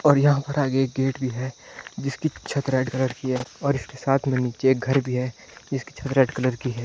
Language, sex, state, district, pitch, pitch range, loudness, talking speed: Hindi, male, Himachal Pradesh, Shimla, 130 Hz, 130-140 Hz, -24 LUFS, 245 wpm